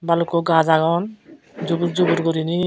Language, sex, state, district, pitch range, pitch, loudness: Chakma, female, Tripura, Unakoti, 165-175 Hz, 170 Hz, -19 LUFS